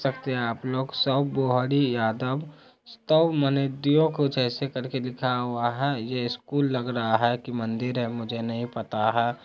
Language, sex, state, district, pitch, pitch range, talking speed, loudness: Hindi, male, Bihar, Araria, 125 Hz, 120-140 Hz, 180 wpm, -26 LUFS